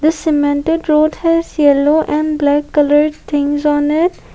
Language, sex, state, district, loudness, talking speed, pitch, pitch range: English, female, Assam, Kamrup Metropolitan, -14 LUFS, 140 wpm, 300 Hz, 290-315 Hz